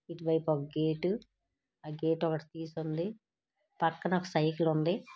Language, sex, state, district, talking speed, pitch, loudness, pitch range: Telugu, female, Andhra Pradesh, Srikakulam, 140 wpm, 165 Hz, -33 LUFS, 160-180 Hz